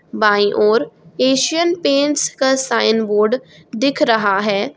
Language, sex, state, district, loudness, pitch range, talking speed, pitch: Hindi, female, Jharkhand, Garhwa, -16 LUFS, 210-275 Hz, 125 wpm, 230 Hz